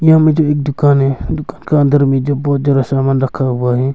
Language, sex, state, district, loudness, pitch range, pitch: Hindi, male, Arunachal Pradesh, Longding, -14 LUFS, 135-145 Hz, 140 Hz